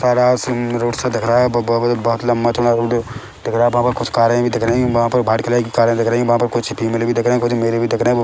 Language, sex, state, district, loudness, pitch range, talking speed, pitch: Hindi, male, Chhattisgarh, Bilaspur, -16 LUFS, 115-120 Hz, 355 wpm, 120 Hz